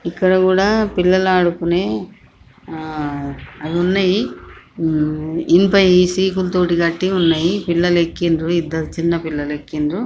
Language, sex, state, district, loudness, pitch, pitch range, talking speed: Telugu, female, Telangana, Nalgonda, -17 LUFS, 170 Hz, 160-185 Hz, 95 wpm